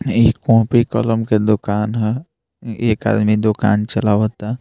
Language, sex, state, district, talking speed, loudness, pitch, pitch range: Bhojpuri, male, Bihar, Muzaffarpur, 130 wpm, -17 LUFS, 110 Hz, 105-115 Hz